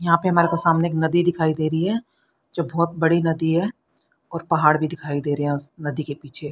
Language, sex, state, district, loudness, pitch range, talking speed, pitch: Hindi, female, Haryana, Rohtak, -21 LUFS, 155-170 Hz, 240 wpm, 165 Hz